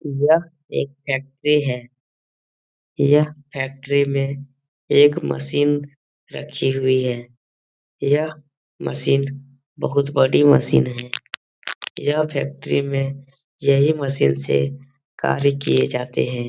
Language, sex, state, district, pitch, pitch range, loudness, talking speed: Hindi, male, Bihar, Jamui, 140 Hz, 130-145 Hz, -20 LUFS, 105 wpm